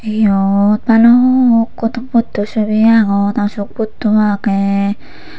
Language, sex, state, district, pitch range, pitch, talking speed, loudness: Chakma, female, Tripura, Unakoti, 205-230 Hz, 215 Hz, 90 wpm, -13 LUFS